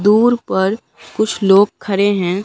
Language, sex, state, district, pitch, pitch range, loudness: Hindi, female, Bihar, Katihar, 200 Hz, 190-215 Hz, -15 LUFS